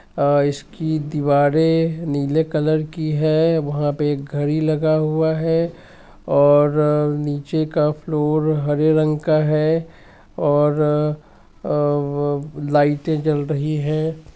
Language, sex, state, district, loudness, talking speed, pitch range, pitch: Hindi, male, Bihar, Sitamarhi, -19 LUFS, 115 wpm, 145-155 Hz, 150 Hz